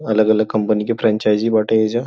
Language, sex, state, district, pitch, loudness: Bhojpuri, male, Uttar Pradesh, Gorakhpur, 110 Hz, -17 LUFS